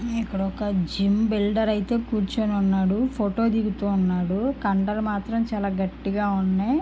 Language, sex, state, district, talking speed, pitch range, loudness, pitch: Telugu, female, Andhra Pradesh, Guntur, 140 wpm, 195-220 Hz, -24 LUFS, 205 Hz